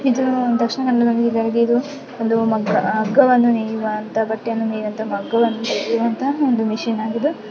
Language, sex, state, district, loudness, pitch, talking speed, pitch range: Kannada, female, Karnataka, Dakshina Kannada, -19 LUFS, 230 Hz, 95 wpm, 220-245 Hz